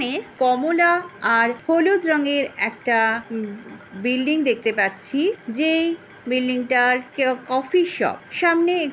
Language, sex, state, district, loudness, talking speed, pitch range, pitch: Bengali, female, West Bengal, Jhargram, -20 LUFS, 130 wpm, 235-330 Hz, 255 Hz